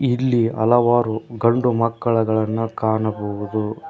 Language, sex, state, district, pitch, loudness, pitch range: Kannada, male, Karnataka, Koppal, 115 Hz, -20 LUFS, 110-120 Hz